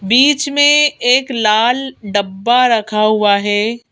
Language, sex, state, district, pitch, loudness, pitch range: Hindi, female, Madhya Pradesh, Bhopal, 235 Hz, -13 LUFS, 210-265 Hz